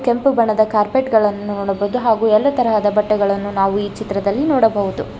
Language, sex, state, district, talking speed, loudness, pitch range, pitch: Kannada, female, Karnataka, Bangalore, 140 wpm, -17 LUFS, 205-230 Hz, 215 Hz